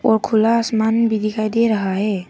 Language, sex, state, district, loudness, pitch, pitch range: Hindi, female, Arunachal Pradesh, Papum Pare, -18 LUFS, 220 Hz, 215-225 Hz